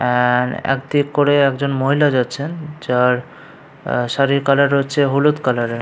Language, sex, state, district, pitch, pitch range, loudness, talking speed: Bengali, male, West Bengal, Paschim Medinipur, 140 Hz, 125-145 Hz, -17 LUFS, 145 wpm